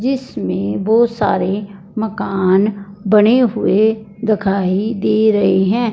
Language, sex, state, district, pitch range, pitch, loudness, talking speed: Hindi, male, Punjab, Fazilka, 195-220 Hz, 210 Hz, -16 LUFS, 100 wpm